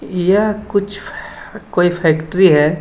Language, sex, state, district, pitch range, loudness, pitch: Hindi, male, Jharkhand, Ranchi, 160-200 Hz, -15 LUFS, 185 Hz